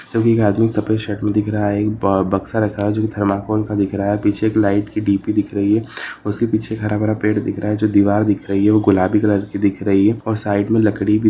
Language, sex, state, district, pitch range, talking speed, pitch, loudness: Marwari, male, Rajasthan, Nagaur, 100-110 Hz, 260 wpm, 105 Hz, -17 LUFS